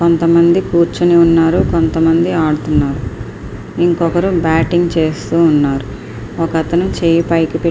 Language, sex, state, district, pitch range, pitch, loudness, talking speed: Telugu, female, Andhra Pradesh, Srikakulam, 155-170 Hz, 165 Hz, -13 LUFS, 100 wpm